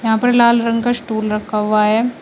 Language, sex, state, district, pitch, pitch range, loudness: Hindi, female, Uttar Pradesh, Shamli, 230 Hz, 215-235 Hz, -15 LUFS